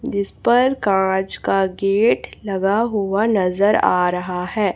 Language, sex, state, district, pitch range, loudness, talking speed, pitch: Hindi, female, Chhattisgarh, Raipur, 190-210 Hz, -18 LUFS, 140 wpm, 195 Hz